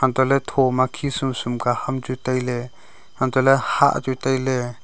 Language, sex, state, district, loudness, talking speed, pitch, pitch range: Wancho, male, Arunachal Pradesh, Longding, -21 LUFS, 200 wpm, 130 Hz, 125-130 Hz